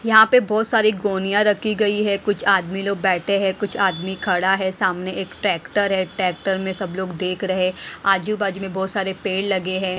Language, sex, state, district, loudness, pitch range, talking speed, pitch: Hindi, female, Himachal Pradesh, Shimla, -20 LUFS, 190-205 Hz, 210 wpm, 195 Hz